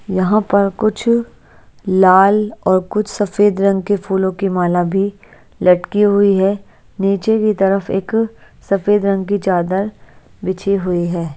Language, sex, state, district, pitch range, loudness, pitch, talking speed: Hindi, female, Haryana, Jhajjar, 190-205 Hz, -16 LUFS, 195 Hz, 140 wpm